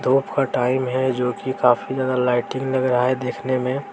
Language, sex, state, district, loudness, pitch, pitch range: Hindi, male, Jharkhand, Deoghar, -21 LUFS, 130 Hz, 125-130 Hz